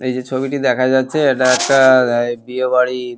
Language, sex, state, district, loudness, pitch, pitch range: Bengali, male, West Bengal, Kolkata, -15 LUFS, 130 Hz, 125-130 Hz